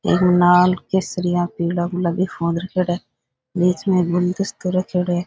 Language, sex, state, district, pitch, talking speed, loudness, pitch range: Rajasthani, male, Rajasthan, Nagaur, 180 Hz, 150 wpm, -19 LUFS, 175-180 Hz